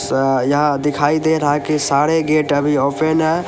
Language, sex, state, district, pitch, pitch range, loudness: Hindi, male, Uttar Pradesh, Lalitpur, 145 Hz, 145-155 Hz, -16 LUFS